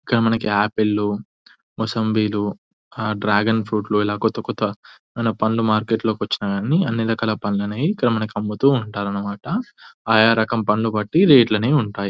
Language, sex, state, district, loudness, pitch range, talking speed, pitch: Telugu, female, Telangana, Nalgonda, -20 LUFS, 105-115 Hz, 145 wpm, 110 Hz